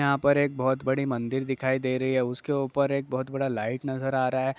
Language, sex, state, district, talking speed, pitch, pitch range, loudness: Hindi, male, Bihar, Saran, 260 wpm, 130 Hz, 130-140 Hz, -27 LUFS